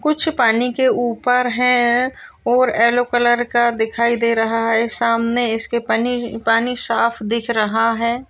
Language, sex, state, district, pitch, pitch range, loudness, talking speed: Hindi, female, Uttar Pradesh, Hamirpur, 235 Hz, 230-245 Hz, -17 LUFS, 145 wpm